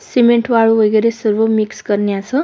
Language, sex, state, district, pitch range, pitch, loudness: Marathi, female, Maharashtra, Solapur, 215-235 Hz, 225 Hz, -14 LUFS